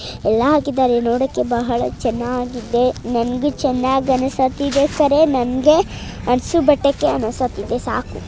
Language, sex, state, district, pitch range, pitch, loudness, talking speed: Kannada, female, Karnataka, Bijapur, 240-280 Hz, 260 Hz, -18 LUFS, 70 wpm